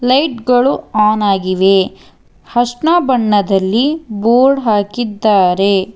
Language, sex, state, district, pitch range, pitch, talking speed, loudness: Kannada, female, Karnataka, Bangalore, 200-250 Hz, 220 Hz, 80 wpm, -13 LUFS